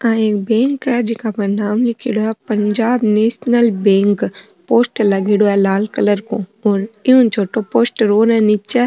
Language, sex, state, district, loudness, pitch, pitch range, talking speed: Marwari, female, Rajasthan, Nagaur, -15 LUFS, 220 Hz, 205-235 Hz, 170 wpm